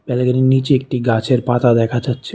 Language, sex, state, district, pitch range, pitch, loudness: Bengali, male, Tripura, West Tripura, 120-130 Hz, 125 Hz, -16 LUFS